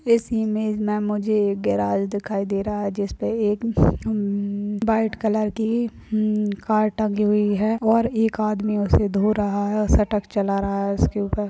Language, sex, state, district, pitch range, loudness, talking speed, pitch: Hindi, female, Chhattisgarh, Bastar, 200-215 Hz, -22 LUFS, 185 wpm, 210 Hz